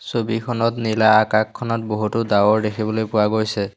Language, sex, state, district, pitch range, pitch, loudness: Assamese, male, Assam, Hailakandi, 105-115 Hz, 110 Hz, -19 LUFS